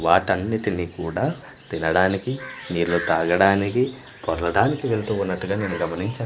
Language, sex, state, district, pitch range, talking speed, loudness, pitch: Telugu, male, Andhra Pradesh, Manyam, 85-110 Hz, 85 wpm, -23 LUFS, 95 Hz